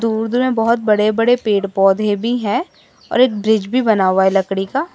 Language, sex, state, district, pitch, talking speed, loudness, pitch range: Hindi, female, Assam, Sonitpur, 220 Hz, 230 wpm, -16 LUFS, 200-240 Hz